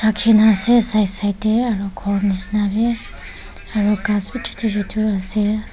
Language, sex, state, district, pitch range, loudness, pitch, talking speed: Nagamese, female, Nagaland, Dimapur, 205-220 Hz, -16 LUFS, 215 Hz, 155 wpm